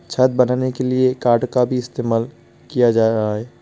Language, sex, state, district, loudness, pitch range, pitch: Hindi, male, West Bengal, Alipurduar, -18 LUFS, 115-130 Hz, 125 Hz